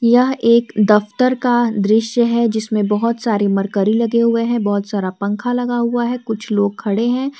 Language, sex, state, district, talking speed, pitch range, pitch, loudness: Hindi, female, Jharkhand, Garhwa, 185 wpm, 210-240 Hz, 230 Hz, -16 LUFS